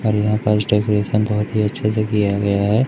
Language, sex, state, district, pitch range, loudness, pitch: Hindi, male, Madhya Pradesh, Umaria, 105-110 Hz, -18 LUFS, 105 Hz